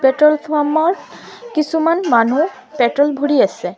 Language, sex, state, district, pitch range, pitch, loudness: Assamese, female, Assam, Sonitpur, 270-320 Hz, 300 Hz, -16 LUFS